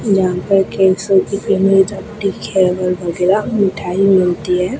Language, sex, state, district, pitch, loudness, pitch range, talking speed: Hindi, female, Rajasthan, Bikaner, 190 Hz, -15 LUFS, 180-195 Hz, 85 wpm